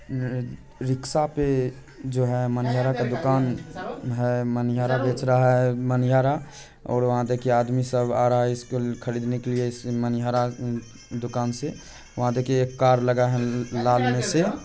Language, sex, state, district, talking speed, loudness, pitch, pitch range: Hindi, male, Bihar, Purnia, 165 wpm, -24 LUFS, 125 Hz, 120-130 Hz